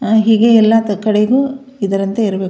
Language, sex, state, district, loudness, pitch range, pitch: Kannada, female, Karnataka, Belgaum, -13 LUFS, 205-230 Hz, 220 Hz